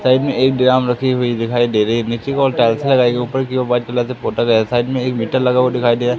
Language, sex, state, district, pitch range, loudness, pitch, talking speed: Hindi, male, Madhya Pradesh, Katni, 120-130 Hz, -16 LUFS, 125 Hz, 330 wpm